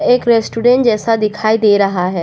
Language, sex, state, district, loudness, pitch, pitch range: Hindi, female, Arunachal Pradesh, Papum Pare, -13 LUFS, 220 Hz, 210-235 Hz